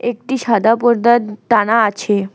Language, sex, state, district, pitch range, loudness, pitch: Bengali, female, West Bengal, Alipurduar, 210-240 Hz, -14 LUFS, 225 Hz